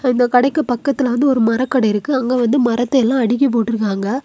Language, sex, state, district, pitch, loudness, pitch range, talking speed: Tamil, female, Tamil Nadu, Kanyakumari, 250 Hz, -16 LUFS, 230-265 Hz, 170 wpm